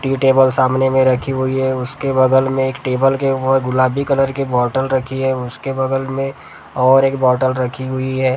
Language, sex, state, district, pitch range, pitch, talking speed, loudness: Hindi, male, Maharashtra, Gondia, 130-135 Hz, 130 Hz, 200 wpm, -16 LUFS